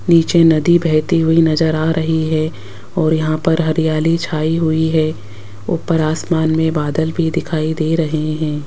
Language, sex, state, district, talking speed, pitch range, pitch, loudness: Hindi, female, Rajasthan, Jaipur, 165 wpm, 155-165 Hz, 160 Hz, -16 LUFS